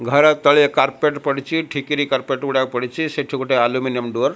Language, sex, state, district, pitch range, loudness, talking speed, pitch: Odia, male, Odisha, Malkangiri, 130-150 Hz, -18 LUFS, 180 wpm, 140 Hz